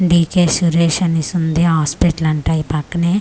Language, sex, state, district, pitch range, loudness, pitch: Telugu, female, Andhra Pradesh, Manyam, 160-175 Hz, -15 LUFS, 165 Hz